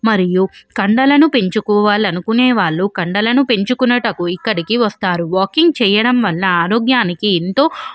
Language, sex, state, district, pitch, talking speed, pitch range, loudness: Telugu, female, Andhra Pradesh, Visakhapatnam, 210 Hz, 115 wpm, 185-245 Hz, -14 LUFS